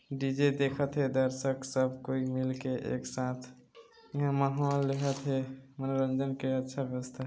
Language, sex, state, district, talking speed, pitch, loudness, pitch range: Hindi, male, Chhattisgarh, Balrampur, 105 wpm, 135 Hz, -32 LUFS, 130-140 Hz